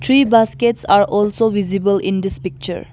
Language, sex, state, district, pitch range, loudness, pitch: English, female, Arunachal Pradesh, Longding, 195-230 Hz, -16 LUFS, 205 Hz